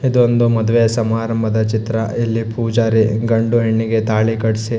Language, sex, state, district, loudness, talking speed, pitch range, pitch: Kannada, male, Karnataka, Shimoga, -16 LUFS, 140 wpm, 110-115 Hz, 115 Hz